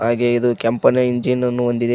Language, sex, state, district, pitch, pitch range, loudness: Kannada, male, Karnataka, Koppal, 120 Hz, 120-125 Hz, -18 LUFS